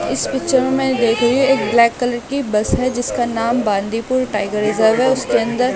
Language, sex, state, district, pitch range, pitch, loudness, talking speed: Hindi, female, Delhi, New Delhi, 225-260 Hz, 240 Hz, -17 LUFS, 220 wpm